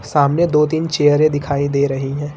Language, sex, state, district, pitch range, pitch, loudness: Hindi, male, Uttar Pradesh, Lucknow, 140-150 Hz, 145 Hz, -16 LUFS